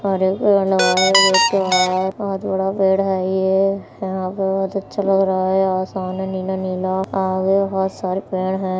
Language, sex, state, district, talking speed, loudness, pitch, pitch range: Hindi, female, Uttar Pradesh, Etah, 135 wpm, -18 LUFS, 190 Hz, 185-195 Hz